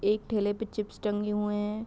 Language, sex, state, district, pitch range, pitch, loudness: Hindi, female, Uttar Pradesh, Hamirpur, 205-215 Hz, 210 Hz, -31 LUFS